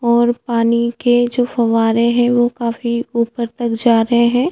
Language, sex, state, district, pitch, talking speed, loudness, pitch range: Hindi, female, Chhattisgarh, Jashpur, 235 Hz, 170 wpm, -16 LUFS, 235-240 Hz